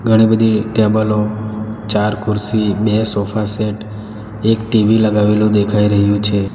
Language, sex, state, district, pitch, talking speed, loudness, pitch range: Gujarati, male, Gujarat, Valsad, 105 Hz, 120 wpm, -15 LUFS, 105-110 Hz